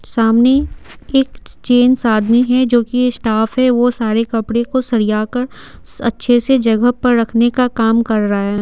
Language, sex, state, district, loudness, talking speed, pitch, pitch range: Hindi, female, Bihar, Patna, -14 LUFS, 160 wpm, 235 Hz, 225-250 Hz